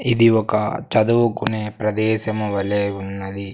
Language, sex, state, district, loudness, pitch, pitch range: Telugu, male, Andhra Pradesh, Sri Satya Sai, -20 LUFS, 105 Hz, 100-110 Hz